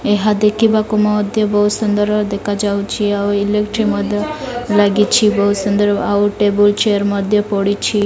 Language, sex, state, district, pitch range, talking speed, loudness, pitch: Odia, female, Odisha, Malkangiri, 205-210 Hz, 125 wpm, -15 LUFS, 205 Hz